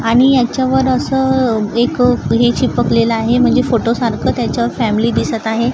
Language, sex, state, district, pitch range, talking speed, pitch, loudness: Marathi, female, Maharashtra, Gondia, 230-255 Hz, 145 wpm, 240 Hz, -14 LUFS